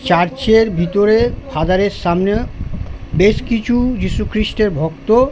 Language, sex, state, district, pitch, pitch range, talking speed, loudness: Bengali, male, West Bengal, Jhargram, 210 Hz, 175-230 Hz, 135 wpm, -15 LUFS